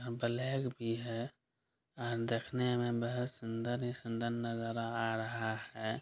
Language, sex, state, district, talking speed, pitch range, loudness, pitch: Hindi, male, Bihar, Kishanganj, 160 wpm, 115-125 Hz, -38 LUFS, 115 Hz